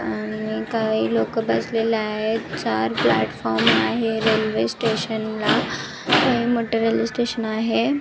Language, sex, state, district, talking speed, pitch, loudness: Marathi, female, Maharashtra, Nagpur, 110 wpm, 220 Hz, -21 LUFS